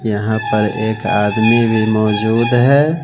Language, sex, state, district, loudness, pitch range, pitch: Hindi, male, Bihar, West Champaran, -14 LUFS, 110-115 Hz, 110 Hz